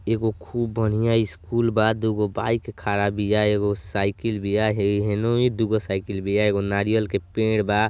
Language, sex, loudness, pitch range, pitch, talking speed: Bhojpuri, male, -23 LUFS, 100-110 Hz, 105 Hz, 165 wpm